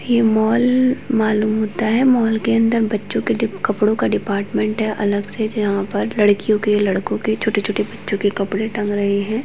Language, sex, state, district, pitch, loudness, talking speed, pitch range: Hindi, female, Uttarakhand, Tehri Garhwal, 215 Hz, -18 LUFS, 195 wpm, 205-225 Hz